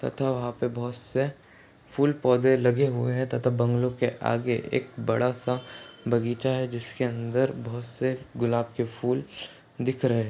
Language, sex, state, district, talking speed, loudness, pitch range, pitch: Hindi, male, Uttar Pradesh, Ghazipur, 170 wpm, -27 LUFS, 120-130 Hz, 125 Hz